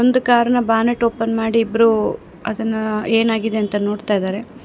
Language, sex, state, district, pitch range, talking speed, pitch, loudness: Kannada, female, Karnataka, Bangalore, 215-235 Hz, 140 wpm, 225 Hz, -18 LUFS